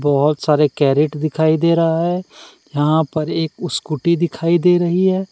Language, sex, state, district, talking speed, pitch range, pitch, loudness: Hindi, male, Jharkhand, Deoghar, 170 wpm, 150-170 Hz, 160 Hz, -17 LUFS